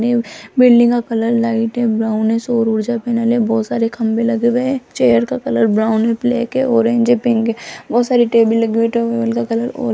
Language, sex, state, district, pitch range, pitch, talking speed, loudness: Hindi, female, Rajasthan, Jaipur, 225-240 Hz, 230 Hz, 240 wpm, -15 LUFS